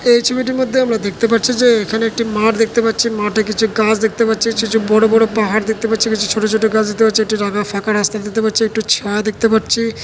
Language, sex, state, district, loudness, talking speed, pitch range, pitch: Bengali, male, West Bengal, Jalpaiguri, -15 LUFS, 240 wpm, 215-230 Hz, 220 Hz